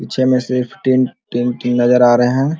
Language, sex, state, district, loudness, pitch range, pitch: Hindi, male, Chhattisgarh, Korba, -15 LUFS, 120-130 Hz, 125 Hz